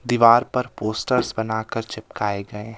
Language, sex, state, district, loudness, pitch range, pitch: Hindi, male, Himachal Pradesh, Shimla, -21 LUFS, 110-120 Hz, 110 Hz